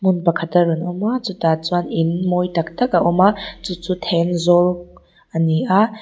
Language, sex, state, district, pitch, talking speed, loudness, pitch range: Mizo, female, Mizoram, Aizawl, 175 Hz, 210 wpm, -18 LUFS, 170-190 Hz